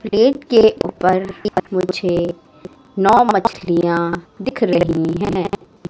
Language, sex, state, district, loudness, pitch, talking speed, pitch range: Hindi, female, Madhya Pradesh, Katni, -17 LUFS, 185 Hz, 90 wpm, 175-210 Hz